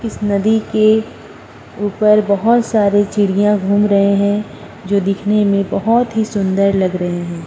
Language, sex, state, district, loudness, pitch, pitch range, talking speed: Hindi, female, Uttar Pradesh, Muzaffarnagar, -15 LUFS, 205 Hz, 200-215 Hz, 145 wpm